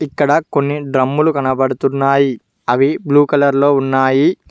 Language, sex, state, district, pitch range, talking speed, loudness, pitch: Telugu, male, Telangana, Mahabubabad, 130-145 Hz, 120 wpm, -14 LUFS, 140 Hz